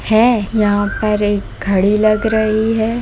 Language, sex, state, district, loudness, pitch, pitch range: Hindi, female, Bihar, Jamui, -15 LUFS, 215 Hz, 205-220 Hz